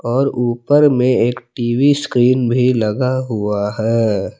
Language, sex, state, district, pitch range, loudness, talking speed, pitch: Hindi, male, Jharkhand, Palamu, 115-130 Hz, -16 LUFS, 135 wpm, 125 Hz